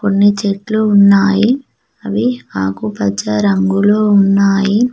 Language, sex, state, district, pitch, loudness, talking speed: Telugu, female, Telangana, Mahabubabad, 200 Hz, -13 LUFS, 85 wpm